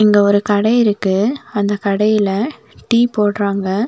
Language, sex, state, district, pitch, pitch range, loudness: Tamil, female, Tamil Nadu, Nilgiris, 205 Hz, 200-220 Hz, -15 LUFS